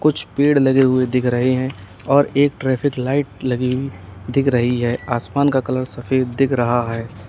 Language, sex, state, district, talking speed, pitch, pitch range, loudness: Hindi, male, Uttar Pradesh, Saharanpur, 180 wpm, 130 Hz, 120-135 Hz, -18 LUFS